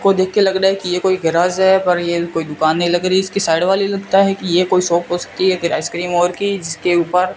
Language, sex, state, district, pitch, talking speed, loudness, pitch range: Hindi, male, Rajasthan, Bikaner, 180 Hz, 295 wpm, -16 LUFS, 175-190 Hz